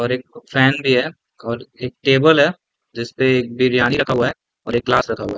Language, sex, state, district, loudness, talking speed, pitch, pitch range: Hindi, male, Chhattisgarh, Raigarh, -17 LUFS, 225 wpm, 130 Hz, 120-140 Hz